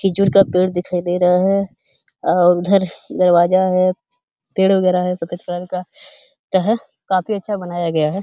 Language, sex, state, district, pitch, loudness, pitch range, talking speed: Hindi, male, Uttar Pradesh, Hamirpur, 185 Hz, -17 LUFS, 180-195 Hz, 175 wpm